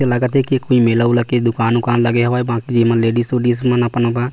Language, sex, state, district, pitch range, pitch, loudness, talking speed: Chhattisgarhi, male, Chhattisgarh, Korba, 120-125 Hz, 120 Hz, -15 LUFS, 195 wpm